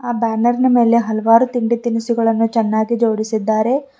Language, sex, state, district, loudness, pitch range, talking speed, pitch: Kannada, female, Karnataka, Bidar, -16 LUFS, 225-240 Hz, 135 wpm, 230 Hz